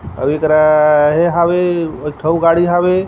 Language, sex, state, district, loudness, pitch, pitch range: Chhattisgarhi, male, Chhattisgarh, Rajnandgaon, -13 LUFS, 165 Hz, 150-175 Hz